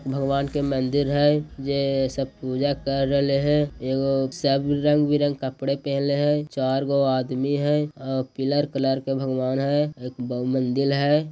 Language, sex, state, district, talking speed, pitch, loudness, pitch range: Magahi, male, Bihar, Jahanabad, 165 wpm, 140 Hz, -23 LUFS, 135-145 Hz